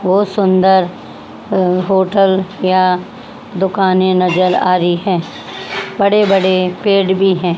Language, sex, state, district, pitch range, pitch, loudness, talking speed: Hindi, female, Haryana, Jhajjar, 185-195 Hz, 190 Hz, -13 LUFS, 120 wpm